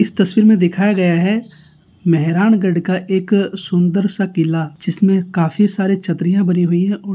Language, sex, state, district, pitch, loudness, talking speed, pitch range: Hindi, male, Rajasthan, Nagaur, 190 Hz, -15 LUFS, 170 wpm, 175-200 Hz